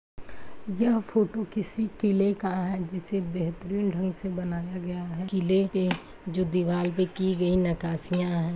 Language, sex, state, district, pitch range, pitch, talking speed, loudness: Hindi, female, Rajasthan, Nagaur, 180-195 Hz, 185 Hz, 155 wpm, -28 LUFS